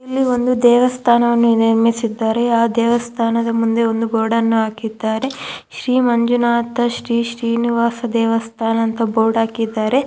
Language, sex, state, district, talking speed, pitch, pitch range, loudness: Kannada, female, Karnataka, Mysore, 105 wpm, 230 Hz, 225-240 Hz, -16 LUFS